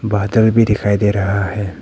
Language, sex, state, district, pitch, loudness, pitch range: Hindi, male, Arunachal Pradesh, Papum Pare, 105 Hz, -15 LUFS, 100-110 Hz